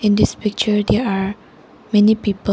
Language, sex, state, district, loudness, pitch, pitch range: English, female, Arunachal Pradesh, Lower Dibang Valley, -17 LUFS, 210 Hz, 200-210 Hz